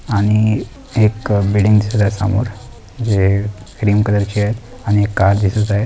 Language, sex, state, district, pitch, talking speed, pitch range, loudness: Marathi, male, Maharashtra, Dhule, 105 Hz, 165 wpm, 100-110 Hz, -16 LUFS